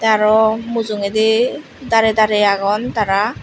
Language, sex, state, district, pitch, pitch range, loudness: Chakma, female, Tripura, Unakoti, 220 Hz, 210-225 Hz, -15 LUFS